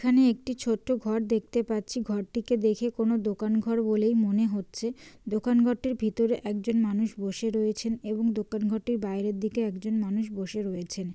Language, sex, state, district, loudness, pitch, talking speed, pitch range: Bengali, female, West Bengal, Jalpaiguri, -28 LUFS, 220 Hz, 165 wpm, 210-230 Hz